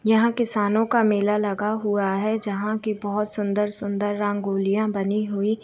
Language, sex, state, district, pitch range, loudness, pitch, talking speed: Hindi, female, Bihar, Gopalganj, 205-215 Hz, -23 LUFS, 210 Hz, 160 wpm